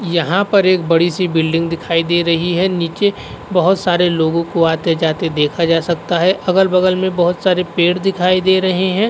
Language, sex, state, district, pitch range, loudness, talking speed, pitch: Hindi, male, Uttar Pradesh, Varanasi, 165-185 Hz, -15 LUFS, 190 wpm, 175 Hz